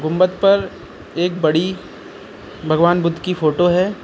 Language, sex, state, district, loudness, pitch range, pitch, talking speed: Hindi, male, Uttar Pradesh, Lucknow, -17 LUFS, 165-185 Hz, 175 Hz, 120 wpm